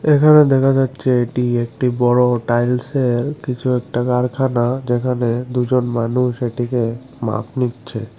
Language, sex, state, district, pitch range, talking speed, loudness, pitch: Bengali, male, Tripura, Unakoti, 120-130 Hz, 115 wpm, -17 LUFS, 125 Hz